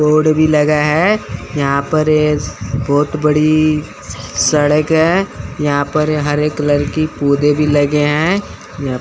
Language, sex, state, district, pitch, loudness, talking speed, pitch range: Hindi, female, Chandigarh, Chandigarh, 150 Hz, -14 LUFS, 145 wpm, 145-155 Hz